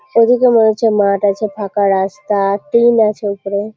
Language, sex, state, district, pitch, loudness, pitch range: Bengali, female, West Bengal, Malda, 210 Hz, -14 LUFS, 200-225 Hz